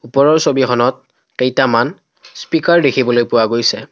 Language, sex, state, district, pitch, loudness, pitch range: Assamese, male, Assam, Kamrup Metropolitan, 125 Hz, -14 LUFS, 120-140 Hz